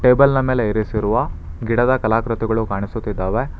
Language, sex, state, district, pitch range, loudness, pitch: Kannada, male, Karnataka, Bangalore, 105-125 Hz, -19 LUFS, 115 Hz